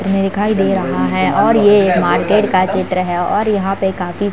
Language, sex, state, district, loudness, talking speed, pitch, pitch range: Hindi, male, Uttar Pradesh, Jalaun, -14 LUFS, 235 wpm, 195 Hz, 180-205 Hz